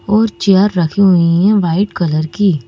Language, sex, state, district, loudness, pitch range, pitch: Hindi, female, Madhya Pradesh, Bhopal, -12 LUFS, 170-205 Hz, 190 Hz